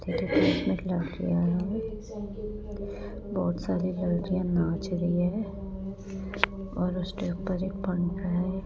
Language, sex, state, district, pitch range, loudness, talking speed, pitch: Hindi, female, Rajasthan, Jaipur, 175-195 Hz, -30 LUFS, 95 wpm, 185 Hz